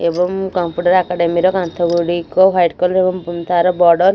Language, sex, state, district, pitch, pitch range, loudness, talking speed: Odia, female, Odisha, Nuapada, 175 Hz, 170-185 Hz, -15 LUFS, 200 wpm